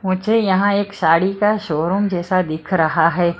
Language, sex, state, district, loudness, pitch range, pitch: Hindi, female, Maharashtra, Mumbai Suburban, -17 LUFS, 165-200 Hz, 185 Hz